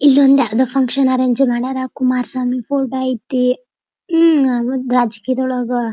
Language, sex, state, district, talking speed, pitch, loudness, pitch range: Kannada, female, Karnataka, Dharwad, 120 wpm, 255 Hz, -16 LUFS, 250-270 Hz